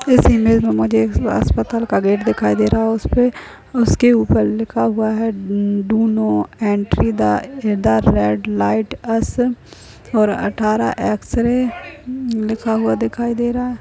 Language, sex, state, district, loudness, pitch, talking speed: Hindi, female, Bihar, Madhepura, -17 LUFS, 205 Hz, 185 wpm